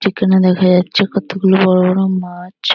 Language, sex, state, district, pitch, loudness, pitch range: Bengali, female, West Bengal, North 24 Parganas, 185 Hz, -13 LUFS, 185-190 Hz